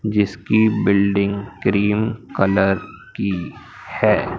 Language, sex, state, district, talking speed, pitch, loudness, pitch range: Hindi, male, Madhya Pradesh, Umaria, 80 wpm, 100 Hz, -19 LUFS, 100-105 Hz